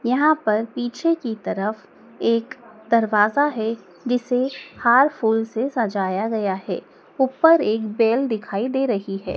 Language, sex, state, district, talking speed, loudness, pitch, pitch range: Hindi, female, Madhya Pradesh, Dhar, 140 wpm, -21 LUFS, 230 Hz, 215-260 Hz